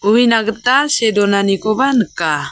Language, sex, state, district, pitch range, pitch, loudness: Garo, female, Meghalaya, South Garo Hills, 205-245 Hz, 225 Hz, -14 LUFS